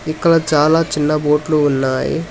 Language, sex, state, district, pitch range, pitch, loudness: Telugu, male, Telangana, Hyderabad, 150-160 Hz, 150 Hz, -15 LUFS